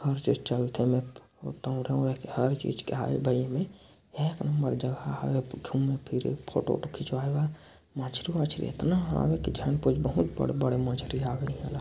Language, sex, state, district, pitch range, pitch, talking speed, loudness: Chhattisgarhi, male, Chhattisgarh, Bilaspur, 125-145 Hz, 135 Hz, 145 wpm, -30 LUFS